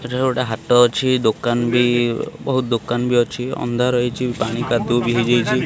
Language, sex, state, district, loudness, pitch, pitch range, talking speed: Odia, male, Odisha, Khordha, -18 LUFS, 120 Hz, 120-125 Hz, 170 wpm